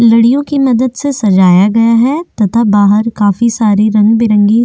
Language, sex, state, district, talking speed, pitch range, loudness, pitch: Hindi, female, Chhattisgarh, Korba, 180 wpm, 210-240 Hz, -10 LUFS, 230 Hz